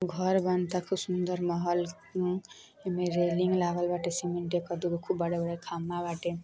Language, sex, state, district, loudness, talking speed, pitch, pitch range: Bhojpuri, female, Uttar Pradesh, Deoria, -31 LUFS, 160 wpm, 175 Hz, 175-180 Hz